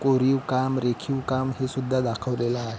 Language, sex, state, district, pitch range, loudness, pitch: Marathi, male, Maharashtra, Pune, 120-130 Hz, -25 LUFS, 130 Hz